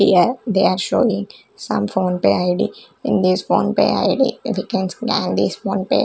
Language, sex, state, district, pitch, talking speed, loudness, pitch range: English, female, Chandigarh, Chandigarh, 195 Hz, 190 wpm, -18 LUFS, 185-235 Hz